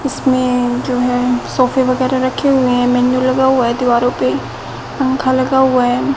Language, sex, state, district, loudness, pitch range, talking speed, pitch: Hindi, female, Haryana, Rohtak, -14 LUFS, 245-260 Hz, 175 wpm, 255 Hz